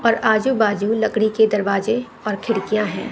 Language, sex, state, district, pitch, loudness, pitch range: Hindi, female, Bihar, West Champaran, 220 Hz, -19 LUFS, 210-225 Hz